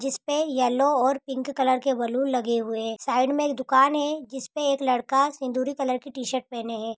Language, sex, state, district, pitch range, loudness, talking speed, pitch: Hindi, female, Bihar, Saran, 250-275 Hz, -25 LUFS, 205 wpm, 265 Hz